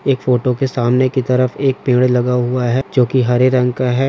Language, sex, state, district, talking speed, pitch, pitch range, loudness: Hindi, male, Andhra Pradesh, Srikakulam, 160 wpm, 125 Hz, 125-130 Hz, -15 LUFS